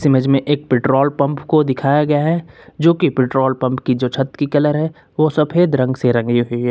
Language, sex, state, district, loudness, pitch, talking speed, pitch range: Hindi, male, Uttar Pradesh, Lucknow, -16 LUFS, 140 Hz, 230 wpm, 130-150 Hz